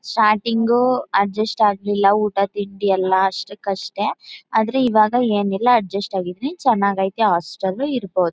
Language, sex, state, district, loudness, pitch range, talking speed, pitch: Kannada, female, Karnataka, Mysore, -19 LUFS, 195-225 Hz, 115 wpm, 205 Hz